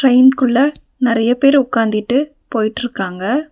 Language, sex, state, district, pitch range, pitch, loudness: Tamil, female, Tamil Nadu, Nilgiris, 225-275 Hz, 255 Hz, -15 LUFS